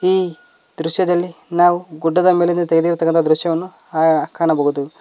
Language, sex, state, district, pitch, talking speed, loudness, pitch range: Kannada, male, Karnataka, Koppal, 170 Hz, 110 wpm, -17 LUFS, 160-180 Hz